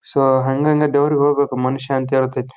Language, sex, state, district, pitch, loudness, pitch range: Kannada, male, Karnataka, Bijapur, 135 Hz, -17 LUFS, 130-145 Hz